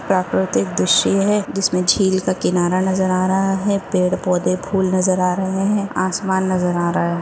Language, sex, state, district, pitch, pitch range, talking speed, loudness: Hindi, female, Maharashtra, Solapur, 185 Hz, 180-195 Hz, 190 wpm, -18 LUFS